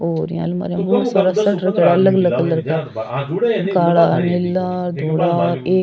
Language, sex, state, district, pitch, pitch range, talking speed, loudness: Rajasthani, female, Rajasthan, Churu, 175 Hz, 160-185 Hz, 175 wpm, -17 LUFS